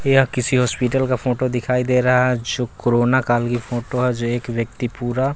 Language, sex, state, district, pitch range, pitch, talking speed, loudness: Hindi, male, Bihar, West Champaran, 120-125 Hz, 125 Hz, 210 wpm, -19 LUFS